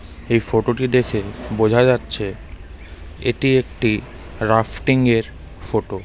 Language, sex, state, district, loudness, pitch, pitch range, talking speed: Bengali, male, West Bengal, Darjeeling, -19 LUFS, 110 Hz, 85-120 Hz, 120 wpm